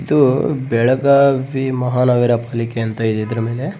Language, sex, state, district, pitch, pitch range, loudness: Kannada, male, Karnataka, Bellary, 125 Hz, 115-135 Hz, -16 LUFS